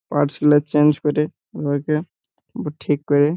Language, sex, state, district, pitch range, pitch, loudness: Bengali, male, West Bengal, Purulia, 145-150 Hz, 150 Hz, -20 LUFS